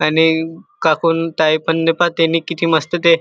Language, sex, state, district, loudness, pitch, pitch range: Marathi, male, Maharashtra, Chandrapur, -16 LUFS, 165 Hz, 160-165 Hz